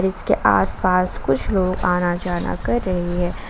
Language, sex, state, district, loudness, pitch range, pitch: Hindi, female, Jharkhand, Garhwa, -20 LUFS, 175-185 Hz, 180 Hz